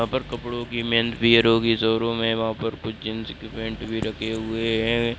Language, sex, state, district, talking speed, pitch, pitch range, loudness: Hindi, male, Bihar, Darbhanga, 220 wpm, 115 Hz, 110-115 Hz, -23 LUFS